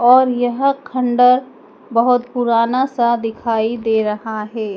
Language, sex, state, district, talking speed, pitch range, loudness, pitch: Hindi, female, Madhya Pradesh, Dhar, 125 wpm, 225-250 Hz, -16 LUFS, 240 Hz